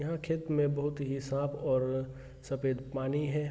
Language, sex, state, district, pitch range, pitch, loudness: Hindi, male, Bihar, Vaishali, 130-145 Hz, 140 Hz, -33 LUFS